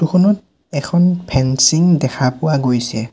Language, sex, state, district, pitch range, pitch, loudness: Assamese, male, Assam, Sonitpur, 130-175 Hz, 145 Hz, -15 LUFS